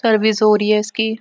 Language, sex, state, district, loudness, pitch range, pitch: Hindi, female, Bihar, East Champaran, -16 LUFS, 215-220 Hz, 220 Hz